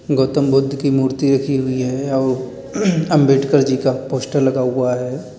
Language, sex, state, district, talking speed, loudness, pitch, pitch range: Hindi, male, Uttar Pradesh, Lalitpur, 165 wpm, -17 LUFS, 135 Hz, 130-140 Hz